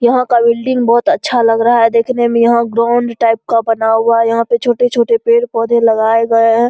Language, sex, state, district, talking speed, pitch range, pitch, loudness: Hindi, female, Bihar, Saharsa, 215 wpm, 230-240 Hz, 235 Hz, -12 LUFS